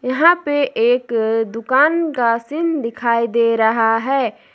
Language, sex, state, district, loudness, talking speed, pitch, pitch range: Hindi, female, Jharkhand, Palamu, -17 LUFS, 130 wpm, 235 Hz, 230-285 Hz